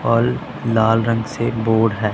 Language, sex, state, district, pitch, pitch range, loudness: Hindi, male, Punjab, Pathankot, 115 Hz, 110-115 Hz, -18 LUFS